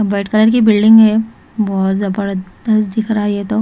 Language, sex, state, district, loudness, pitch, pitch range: Hindi, female, Chhattisgarh, Raipur, -13 LUFS, 215 Hz, 200-220 Hz